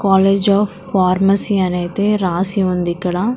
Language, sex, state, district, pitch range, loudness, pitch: Telugu, female, Telangana, Karimnagar, 180-200 Hz, -16 LUFS, 190 Hz